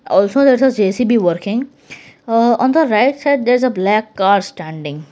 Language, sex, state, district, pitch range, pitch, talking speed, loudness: English, female, Gujarat, Valsad, 195-265 Hz, 235 Hz, 200 wpm, -14 LUFS